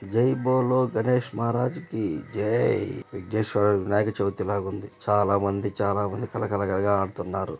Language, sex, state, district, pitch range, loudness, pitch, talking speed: Telugu, male, Andhra Pradesh, Chittoor, 100-120 Hz, -25 LUFS, 105 Hz, 150 wpm